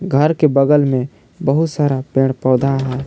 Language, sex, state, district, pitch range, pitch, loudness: Hindi, male, Jharkhand, Palamu, 130-150 Hz, 135 Hz, -16 LUFS